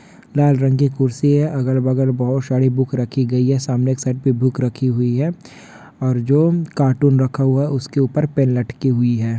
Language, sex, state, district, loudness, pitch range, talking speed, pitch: Hindi, male, Jharkhand, Jamtara, -18 LUFS, 130-140 Hz, 215 wpm, 130 Hz